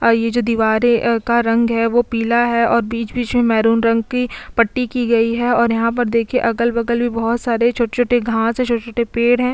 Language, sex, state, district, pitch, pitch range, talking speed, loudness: Hindi, female, Chhattisgarh, Kabirdham, 235 Hz, 230-240 Hz, 265 wpm, -17 LUFS